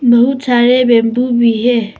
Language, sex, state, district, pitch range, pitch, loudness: Hindi, female, Arunachal Pradesh, Papum Pare, 235-250 Hz, 240 Hz, -11 LUFS